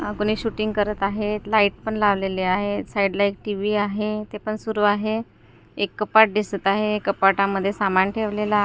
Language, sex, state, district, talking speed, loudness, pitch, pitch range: Marathi, female, Maharashtra, Gondia, 145 wpm, -22 LUFS, 210 Hz, 200-215 Hz